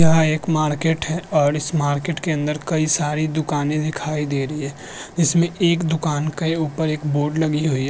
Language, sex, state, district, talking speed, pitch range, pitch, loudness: Hindi, male, Uttar Pradesh, Budaun, 195 wpm, 150-160 Hz, 155 Hz, -21 LUFS